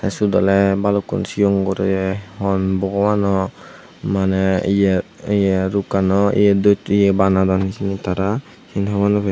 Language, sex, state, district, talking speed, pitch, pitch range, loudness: Chakma, male, Tripura, Unakoti, 135 wpm, 100 Hz, 95-100 Hz, -18 LUFS